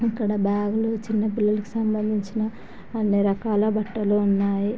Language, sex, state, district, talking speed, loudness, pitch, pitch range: Telugu, female, Andhra Pradesh, Chittoor, 125 wpm, -23 LUFS, 210 Hz, 205-220 Hz